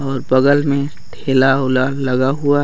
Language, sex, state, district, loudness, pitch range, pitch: Hindi, male, Chhattisgarh, Raigarh, -15 LUFS, 130-140 Hz, 135 Hz